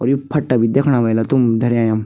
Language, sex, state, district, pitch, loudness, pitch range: Garhwali, female, Uttarakhand, Tehri Garhwal, 120 Hz, -16 LUFS, 115-135 Hz